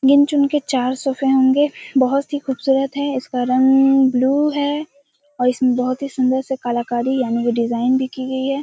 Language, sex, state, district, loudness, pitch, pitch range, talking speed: Hindi, female, Bihar, Kishanganj, -18 LUFS, 265 Hz, 255-280 Hz, 190 wpm